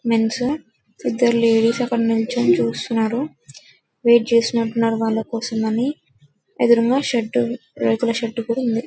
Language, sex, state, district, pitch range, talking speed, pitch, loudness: Telugu, female, Telangana, Karimnagar, 225-240 Hz, 130 wpm, 230 Hz, -19 LUFS